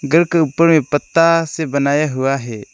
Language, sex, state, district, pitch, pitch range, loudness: Hindi, male, Arunachal Pradesh, Lower Dibang Valley, 150 Hz, 140-165 Hz, -15 LUFS